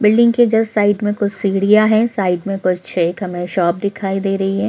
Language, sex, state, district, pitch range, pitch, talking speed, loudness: Hindi, female, Chhattisgarh, Korba, 190-210 Hz, 200 Hz, 240 wpm, -16 LUFS